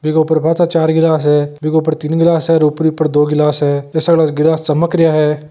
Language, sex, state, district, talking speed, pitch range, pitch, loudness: Marwari, male, Rajasthan, Nagaur, 260 wpm, 150-160 Hz, 155 Hz, -13 LUFS